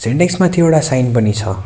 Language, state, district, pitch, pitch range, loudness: Nepali, West Bengal, Darjeeling, 130 Hz, 110-170 Hz, -13 LUFS